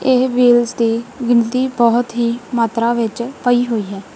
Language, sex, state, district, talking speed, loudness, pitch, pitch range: Punjabi, female, Punjab, Kapurthala, 160 wpm, -16 LUFS, 235 Hz, 230-245 Hz